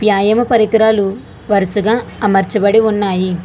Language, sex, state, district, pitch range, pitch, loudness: Telugu, female, Telangana, Hyderabad, 195-220 Hz, 205 Hz, -13 LUFS